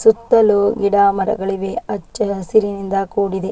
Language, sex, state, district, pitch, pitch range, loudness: Kannada, female, Karnataka, Dakshina Kannada, 200 Hz, 195-215 Hz, -17 LUFS